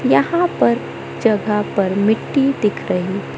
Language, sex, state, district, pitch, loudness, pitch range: Hindi, male, Madhya Pradesh, Katni, 215 Hz, -18 LUFS, 200-270 Hz